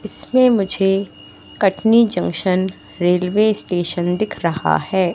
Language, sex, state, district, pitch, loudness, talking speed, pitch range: Hindi, female, Madhya Pradesh, Katni, 190 Hz, -17 LUFS, 105 wpm, 175-215 Hz